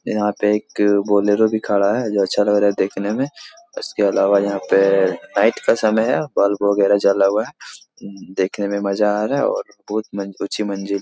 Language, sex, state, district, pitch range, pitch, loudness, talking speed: Hindi, male, Bihar, Jahanabad, 100-105 Hz, 100 Hz, -18 LUFS, 210 wpm